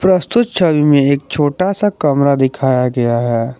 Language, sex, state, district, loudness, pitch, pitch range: Hindi, male, Jharkhand, Garhwa, -14 LUFS, 140 Hz, 130-180 Hz